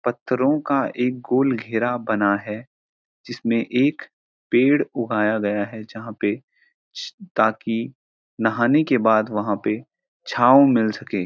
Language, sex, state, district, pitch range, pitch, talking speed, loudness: Hindi, male, Uttarakhand, Uttarkashi, 110-135 Hz, 120 Hz, 130 wpm, -21 LUFS